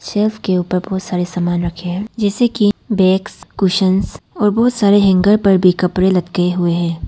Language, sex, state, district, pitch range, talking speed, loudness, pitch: Hindi, female, Arunachal Pradesh, Papum Pare, 180-205 Hz, 185 wpm, -15 LUFS, 190 Hz